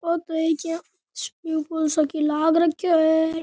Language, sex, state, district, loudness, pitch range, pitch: Rajasthani, male, Rajasthan, Nagaur, -23 LUFS, 315-330 Hz, 320 Hz